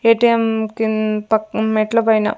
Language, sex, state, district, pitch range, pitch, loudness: Telugu, female, Andhra Pradesh, Sri Satya Sai, 215-230 Hz, 220 Hz, -17 LUFS